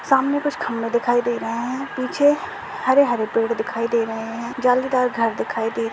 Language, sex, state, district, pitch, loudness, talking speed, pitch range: Hindi, female, Maharashtra, Sindhudurg, 240 Hz, -21 LUFS, 200 wpm, 230-260 Hz